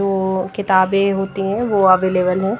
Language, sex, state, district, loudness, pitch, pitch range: Hindi, female, Odisha, Nuapada, -17 LUFS, 195 Hz, 185-195 Hz